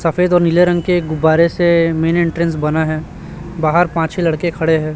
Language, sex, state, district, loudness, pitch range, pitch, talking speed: Hindi, male, Chhattisgarh, Raipur, -15 LUFS, 160-175 Hz, 165 Hz, 205 wpm